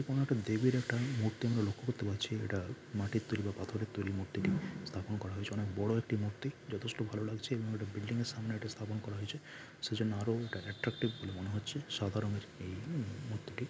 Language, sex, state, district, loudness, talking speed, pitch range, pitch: Bengali, male, West Bengal, Dakshin Dinajpur, -38 LUFS, 210 wpm, 105-120 Hz, 110 Hz